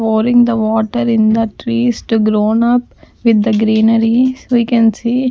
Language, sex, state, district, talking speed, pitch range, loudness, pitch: English, female, Punjab, Fazilka, 170 wpm, 220-240 Hz, -13 LUFS, 230 Hz